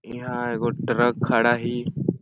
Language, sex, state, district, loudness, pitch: Awadhi, male, Chhattisgarh, Balrampur, -23 LUFS, 120 Hz